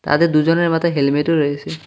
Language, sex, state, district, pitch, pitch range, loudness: Bengali, male, West Bengal, Cooch Behar, 155 Hz, 145-165 Hz, -16 LUFS